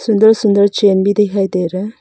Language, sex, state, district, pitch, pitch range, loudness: Hindi, female, Arunachal Pradesh, Papum Pare, 205 Hz, 195-215 Hz, -13 LUFS